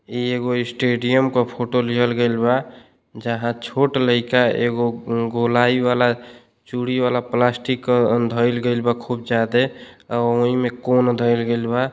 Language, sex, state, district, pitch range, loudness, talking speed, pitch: Bhojpuri, male, Uttar Pradesh, Deoria, 120-125 Hz, -19 LUFS, 145 wpm, 120 Hz